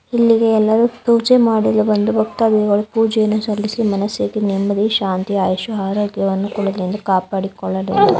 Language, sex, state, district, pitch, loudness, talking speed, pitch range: Kannada, female, Karnataka, Mysore, 210 Hz, -16 LUFS, 130 wpm, 195-220 Hz